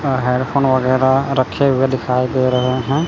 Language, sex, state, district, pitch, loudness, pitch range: Hindi, male, Chandigarh, Chandigarh, 130 Hz, -16 LUFS, 130-135 Hz